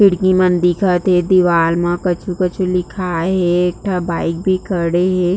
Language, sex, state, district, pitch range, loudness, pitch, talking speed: Chhattisgarhi, female, Chhattisgarh, Jashpur, 175-185 Hz, -16 LUFS, 180 Hz, 155 wpm